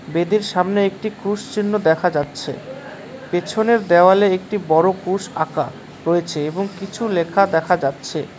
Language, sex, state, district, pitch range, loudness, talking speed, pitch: Bengali, male, West Bengal, Cooch Behar, 160-200 Hz, -19 LUFS, 135 wpm, 180 Hz